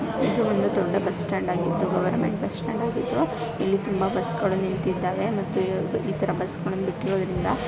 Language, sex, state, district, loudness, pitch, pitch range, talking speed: Kannada, female, Karnataka, Bijapur, -25 LUFS, 190 Hz, 185-195 Hz, 135 wpm